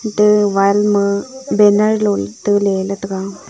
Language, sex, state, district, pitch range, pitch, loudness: Wancho, female, Arunachal Pradesh, Longding, 195-210 Hz, 205 Hz, -15 LUFS